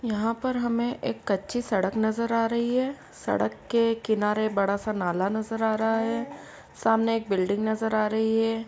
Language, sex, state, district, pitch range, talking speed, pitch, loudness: Hindi, female, Uttar Pradesh, Etah, 215-230 Hz, 185 wpm, 225 Hz, -26 LUFS